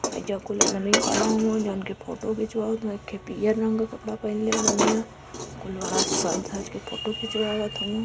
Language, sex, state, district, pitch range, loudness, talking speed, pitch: Bhojpuri, female, Uttar Pradesh, Varanasi, 210-220 Hz, -25 LUFS, 185 wpm, 220 Hz